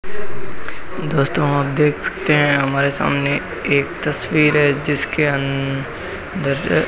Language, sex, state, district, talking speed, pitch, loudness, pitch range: Hindi, male, Rajasthan, Bikaner, 115 wpm, 145 Hz, -17 LUFS, 140-150 Hz